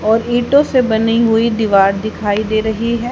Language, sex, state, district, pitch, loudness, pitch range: Hindi, female, Haryana, Jhajjar, 225 Hz, -14 LUFS, 215-235 Hz